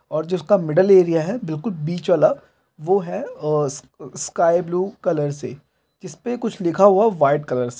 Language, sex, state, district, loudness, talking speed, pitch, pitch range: Hindi, male, Jharkhand, Jamtara, -19 LUFS, 175 wpm, 175 Hz, 150-195 Hz